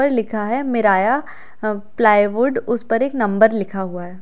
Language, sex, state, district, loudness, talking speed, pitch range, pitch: Hindi, female, Delhi, New Delhi, -18 LUFS, 185 wpm, 205-235 Hz, 220 Hz